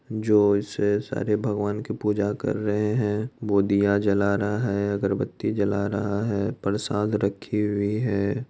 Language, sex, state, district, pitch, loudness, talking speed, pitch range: Hindi, male, Bihar, Madhepura, 105 Hz, -24 LUFS, 160 wpm, 100-105 Hz